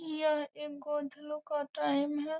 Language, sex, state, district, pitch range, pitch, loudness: Hindi, female, Bihar, Gopalganj, 295-305 Hz, 295 Hz, -35 LUFS